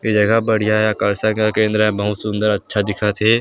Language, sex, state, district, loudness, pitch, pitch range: Chhattisgarhi, male, Chhattisgarh, Sarguja, -17 LUFS, 105 Hz, 105-110 Hz